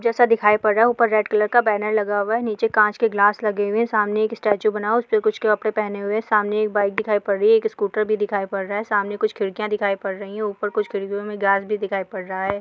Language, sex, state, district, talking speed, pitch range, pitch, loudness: Hindi, female, Bihar, Samastipur, 320 wpm, 205-215 Hz, 210 Hz, -21 LUFS